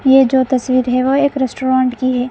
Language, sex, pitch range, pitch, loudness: Hindi, female, 255-265 Hz, 260 Hz, -14 LUFS